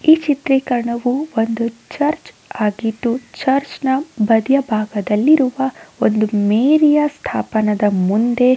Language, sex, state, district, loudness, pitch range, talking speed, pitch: Kannada, female, Karnataka, Raichur, -17 LUFS, 220-275 Hz, 90 wpm, 245 Hz